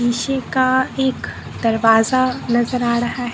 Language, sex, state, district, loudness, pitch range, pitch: Hindi, female, Bihar, Katihar, -18 LUFS, 235-260 Hz, 245 Hz